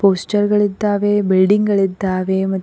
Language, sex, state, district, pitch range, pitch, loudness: Kannada, female, Karnataka, Koppal, 190-205 Hz, 200 Hz, -16 LUFS